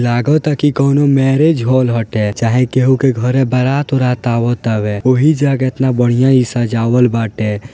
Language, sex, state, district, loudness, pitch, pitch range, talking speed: Bhojpuri, male, Bihar, Gopalganj, -13 LUFS, 125 Hz, 120-135 Hz, 155 wpm